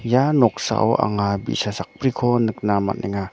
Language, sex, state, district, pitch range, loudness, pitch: Garo, male, Meghalaya, North Garo Hills, 100-120 Hz, -20 LUFS, 110 Hz